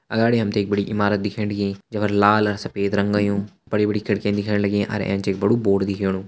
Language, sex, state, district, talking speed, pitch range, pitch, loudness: Hindi, male, Uttarakhand, Uttarkashi, 230 wpm, 100-105 Hz, 100 Hz, -21 LUFS